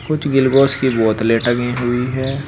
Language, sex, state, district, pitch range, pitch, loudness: Hindi, male, Uttar Pradesh, Saharanpur, 120-135 Hz, 130 Hz, -16 LUFS